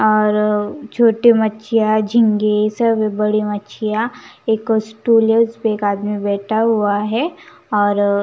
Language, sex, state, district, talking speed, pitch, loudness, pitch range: Hindi, female, Punjab, Kapurthala, 140 wpm, 215 Hz, -17 LUFS, 210-225 Hz